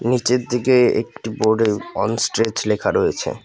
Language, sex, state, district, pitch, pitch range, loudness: Bengali, male, West Bengal, Alipurduar, 115 Hz, 105-125 Hz, -19 LUFS